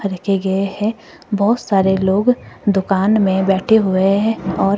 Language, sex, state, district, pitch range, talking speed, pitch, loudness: Hindi, female, Himachal Pradesh, Shimla, 190-215 Hz, 150 wpm, 195 Hz, -16 LUFS